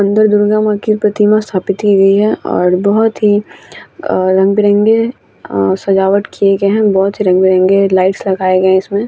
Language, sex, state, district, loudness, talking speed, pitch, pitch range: Hindi, female, Bihar, Vaishali, -11 LUFS, 170 wpm, 200 Hz, 190-210 Hz